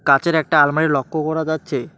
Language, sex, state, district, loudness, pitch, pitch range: Bengali, male, West Bengal, Alipurduar, -18 LUFS, 155 Hz, 145-160 Hz